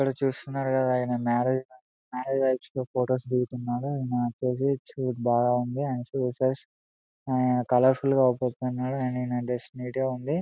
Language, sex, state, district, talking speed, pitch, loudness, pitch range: Telugu, male, Telangana, Karimnagar, 115 wpm, 125 Hz, -27 LUFS, 125-130 Hz